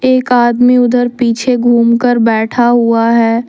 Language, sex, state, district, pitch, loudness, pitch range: Hindi, female, Jharkhand, Deoghar, 240 Hz, -10 LUFS, 230-245 Hz